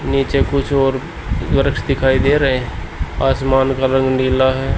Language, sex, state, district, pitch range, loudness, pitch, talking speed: Hindi, male, Haryana, Charkhi Dadri, 130-135 Hz, -16 LUFS, 135 Hz, 165 wpm